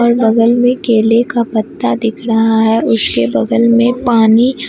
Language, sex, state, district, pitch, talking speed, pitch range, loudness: Hindi, female, Bihar, Katihar, 225 Hz, 165 wpm, 220-235 Hz, -12 LUFS